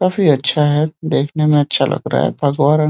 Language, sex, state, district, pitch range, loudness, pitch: Hindi, male, Uttar Pradesh, Deoria, 145-155 Hz, -16 LUFS, 150 Hz